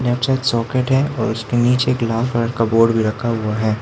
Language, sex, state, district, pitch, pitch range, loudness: Hindi, male, Arunachal Pradesh, Lower Dibang Valley, 115 Hz, 115-125 Hz, -18 LUFS